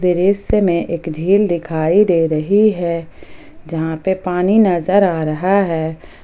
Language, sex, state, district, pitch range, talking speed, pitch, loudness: Hindi, female, Jharkhand, Ranchi, 160-195 Hz, 145 wpm, 175 Hz, -16 LUFS